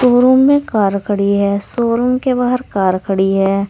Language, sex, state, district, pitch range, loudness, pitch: Hindi, female, Uttar Pradesh, Saharanpur, 195-250 Hz, -13 LUFS, 205 Hz